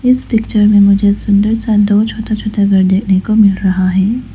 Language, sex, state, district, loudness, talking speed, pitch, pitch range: Hindi, female, Arunachal Pradesh, Lower Dibang Valley, -12 LUFS, 205 wpm, 205 Hz, 195-215 Hz